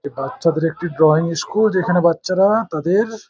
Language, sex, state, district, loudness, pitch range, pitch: Bengali, male, West Bengal, Jhargram, -17 LUFS, 160-195 Hz, 170 Hz